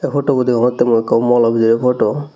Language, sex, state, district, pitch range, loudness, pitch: Chakma, male, Tripura, Dhalai, 115-130 Hz, -14 LUFS, 120 Hz